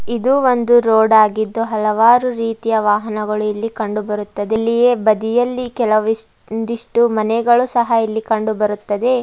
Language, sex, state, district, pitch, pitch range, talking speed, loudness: Kannada, female, Karnataka, Dharwad, 225 Hz, 215-235 Hz, 110 wpm, -16 LUFS